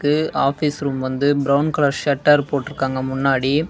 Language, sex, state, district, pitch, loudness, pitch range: Tamil, male, Tamil Nadu, Namakkal, 140 Hz, -19 LUFS, 135-150 Hz